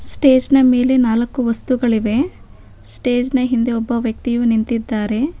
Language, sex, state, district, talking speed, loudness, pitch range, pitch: Kannada, female, Karnataka, Bangalore, 120 wpm, -16 LUFS, 230-255 Hz, 245 Hz